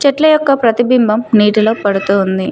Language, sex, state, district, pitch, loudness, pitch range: Telugu, female, Telangana, Mahabubabad, 225 Hz, -12 LUFS, 205-275 Hz